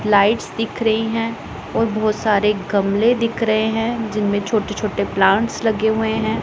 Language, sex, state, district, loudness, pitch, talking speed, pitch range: Hindi, female, Punjab, Pathankot, -19 LUFS, 220 Hz, 160 wpm, 210-225 Hz